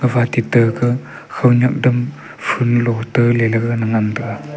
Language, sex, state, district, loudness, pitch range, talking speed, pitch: Wancho, male, Arunachal Pradesh, Longding, -16 LUFS, 115-125 Hz, 155 wpm, 120 Hz